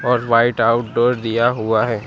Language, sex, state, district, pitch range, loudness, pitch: Hindi, male, Gujarat, Gandhinagar, 115-120 Hz, -17 LUFS, 115 Hz